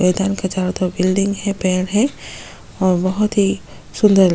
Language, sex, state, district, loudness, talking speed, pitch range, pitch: Hindi, female, Goa, North and South Goa, -18 LUFS, 180 wpm, 185-200 Hz, 190 Hz